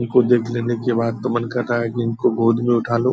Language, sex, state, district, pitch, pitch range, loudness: Hindi, male, Bihar, Purnia, 120 Hz, 115-120 Hz, -19 LUFS